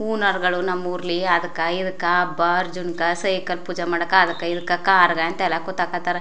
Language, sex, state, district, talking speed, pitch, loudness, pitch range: Kannada, female, Karnataka, Chamarajanagar, 165 wpm, 175 Hz, -21 LUFS, 175-185 Hz